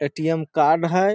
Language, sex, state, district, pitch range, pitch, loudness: Maithili, male, Bihar, Samastipur, 155-170 Hz, 160 Hz, -20 LUFS